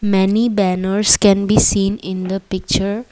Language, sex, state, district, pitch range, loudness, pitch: English, female, Assam, Kamrup Metropolitan, 190-205 Hz, -16 LUFS, 195 Hz